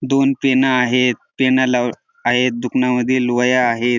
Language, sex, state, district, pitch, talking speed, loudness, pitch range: Marathi, male, Maharashtra, Dhule, 125 Hz, 120 wpm, -16 LUFS, 125-130 Hz